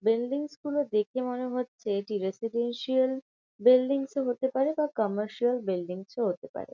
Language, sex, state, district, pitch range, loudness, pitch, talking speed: Bengali, female, West Bengal, Kolkata, 215-265 Hz, -29 LUFS, 245 Hz, 150 wpm